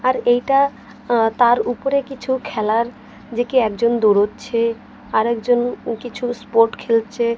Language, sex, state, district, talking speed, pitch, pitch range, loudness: Bengali, female, Odisha, Malkangiri, 120 wpm, 235 Hz, 230-245 Hz, -19 LUFS